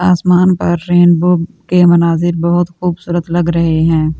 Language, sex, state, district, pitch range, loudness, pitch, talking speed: Hindi, female, Delhi, New Delhi, 170-180 Hz, -12 LUFS, 175 Hz, 155 wpm